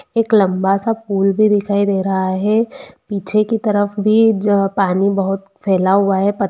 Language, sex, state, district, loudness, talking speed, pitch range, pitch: Hindi, female, Jharkhand, Jamtara, -16 LUFS, 185 wpm, 195-215 Hz, 200 Hz